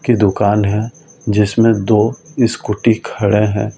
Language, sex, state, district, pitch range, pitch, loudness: Hindi, male, Delhi, New Delhi, 105-120 Hz, 110 Hz, -15 LUFS